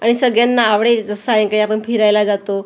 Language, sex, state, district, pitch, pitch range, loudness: Marathi, female, Maharashtra, Gondia, 215 Hz, 210-235 Hz, -15 LUFS